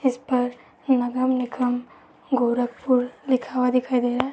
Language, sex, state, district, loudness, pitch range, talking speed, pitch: Hindi, female, Uttar Pradesh, Gorakhpur, -23 LUFS, 245-260 Hz, 150 wpm, 250 Hz